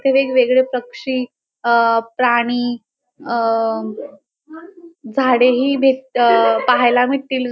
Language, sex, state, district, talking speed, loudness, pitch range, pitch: Marathi, male, Maharashtra, Dhule, 80 wpm, -16 LUFS, 235-265 Hz, 250 Hz